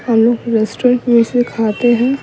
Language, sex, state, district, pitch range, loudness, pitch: Hindi, female, Bihar, Patna, 225-245 Hz, -14 LUFS, 240 Hz